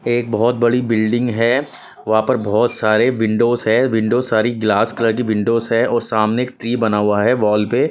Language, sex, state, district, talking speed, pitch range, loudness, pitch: Hindi, male, Punjab, Pathankot, 205 wpm, 110-120 Hz, -16 LUFS, 115 Hz